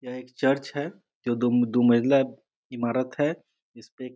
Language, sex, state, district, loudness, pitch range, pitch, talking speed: Hindi, male, Bihar, Muzaffarpur, -25 LUFS, 120-140 Hz, 130 Hz, 175 wpm